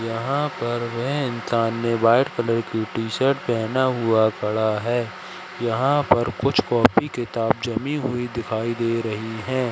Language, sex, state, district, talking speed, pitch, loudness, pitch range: Hindi, male, Madhya Pradesh, Katni, 155 wpm, 115 Hz, -22 LUFS, 115-125 Hz